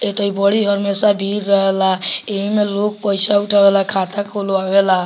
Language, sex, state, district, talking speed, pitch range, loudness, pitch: Bhojpuri, male, Bihar, Muzaffarpur, 175 wpm, 195-205 Hz, -16 LUFS, 200 Hz